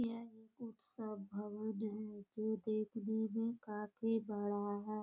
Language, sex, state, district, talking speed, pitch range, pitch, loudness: Hindi, female, Bihar, Purnia, 130 wpm, 210-225 Hz, 215 Hz, -42 LUFS